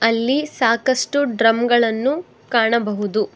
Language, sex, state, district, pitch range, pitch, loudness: Kannada, female, Karnataka, Bangalore, 225-260 Hz, 235 Hz, -18 LUFS